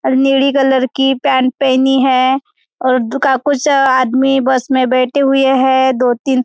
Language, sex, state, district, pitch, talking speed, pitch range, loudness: Hindi, male, Maharashtra, Chandrapur, 265 Hz, 175 wpm, 260-270 Hz, -12 LUFS